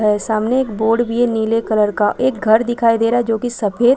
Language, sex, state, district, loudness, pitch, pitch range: Hindi, female, Chhattisgarh, Balrampur, -16 LUFS, 225 Hz, 215-240 Hz